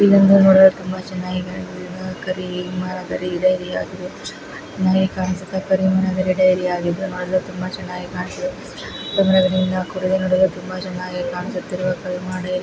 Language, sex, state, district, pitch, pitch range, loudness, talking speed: Kannada, female, Karnataka, Belgaum, 185 Hz, 180-190 Hz, -20 LUFS, 140 wpm